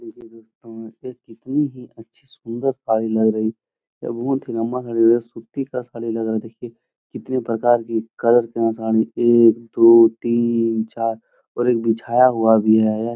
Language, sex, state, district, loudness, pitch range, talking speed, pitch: Hindi, male, Bihar, Jahanabad, -19 LUFS, 115-120 Hz, 175 wpm, 115 Hz